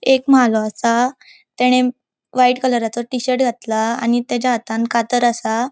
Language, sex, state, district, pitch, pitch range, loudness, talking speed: Konkani, female, Goa, North and South Goa, 245 Hz, 235-255 Hz, -17 LUFS, 145 wpm